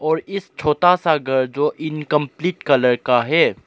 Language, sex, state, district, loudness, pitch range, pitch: Hindi, male, Arunachal Pradesh, Lower Dibang Valley, -18 LUFS, 135-160 Hz, 150 Hz